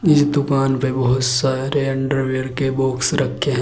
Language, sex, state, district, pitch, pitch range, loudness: Hindi, male, Uttar Pradesh, Saharanpur, 135 Hz, 130-140 Hz, -19 LUFS